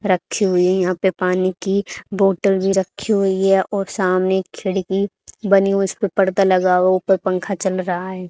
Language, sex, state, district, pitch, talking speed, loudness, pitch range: Hindi, female, Haryana, Charkhi Dadri, 190 Hz, 190 wpm, -18 LUFS, 185-195 Hz